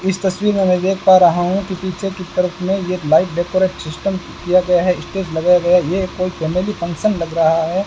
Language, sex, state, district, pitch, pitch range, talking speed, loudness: Hindi, male, Rajasthan, Bikaner, 180 Hz, 175-190 Hz, 230 wpm, -17 LUFS